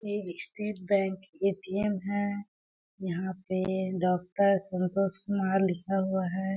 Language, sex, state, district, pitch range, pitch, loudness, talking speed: Hindi, female, Chhattisgarh, Balrampur, 185-200 Hz, 190 Hz, -30 LUFS, 130 wpm